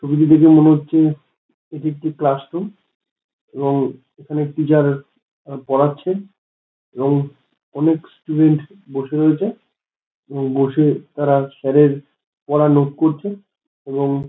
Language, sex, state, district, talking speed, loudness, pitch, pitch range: Bengali, male, West Bengal, Dakshin Dinajpur, 110 wpm, -17 LUFS, 150 Hz, 140-155 Hz